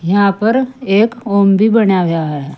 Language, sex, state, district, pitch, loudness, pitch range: Hindi, female, Uttar Pradesh, Saharanpur, 200 Hz, -13 LUFS, 185-225 Hz